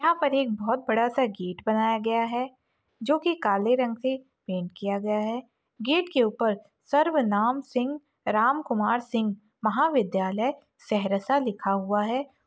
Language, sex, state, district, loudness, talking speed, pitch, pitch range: Hindi, female, Bihar, Saharsa, -26 LUFS, 155 wpm, 235 Hz, 210-270 Hz